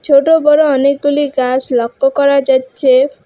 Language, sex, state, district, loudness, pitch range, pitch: Bengali, female, West Bengal, Alipurduar, -12 LUFS, 260-285 Hz, 275 Hz